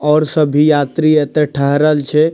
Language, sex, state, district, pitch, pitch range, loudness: Maithili, male, Bihar, Madhepura, 150 Hz, 145-155 Hz, -13 LUFS